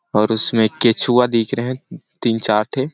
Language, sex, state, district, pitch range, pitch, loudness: Hindi, male, Chhattisgarh, Sarguja, 110-130 Hz, 120 Hz, -16 LUFS